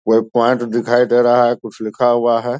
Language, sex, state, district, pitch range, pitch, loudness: Hindi, male, Bihar, Saharsa, 115-120 Hz, 120 Hz, -15 LUFS